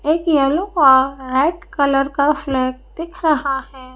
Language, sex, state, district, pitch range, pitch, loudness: Hindi, female, Madhya Pradesh, Bhopal, 265-310 Hz, 275 Hz, -17 LUFS